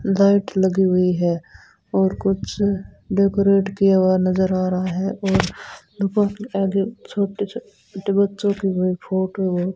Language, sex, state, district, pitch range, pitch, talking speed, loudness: Hindi, female, Rajasthan, Bikaner, 185-200 Hz, 195 Hz, 150 wpm, -20 LUFS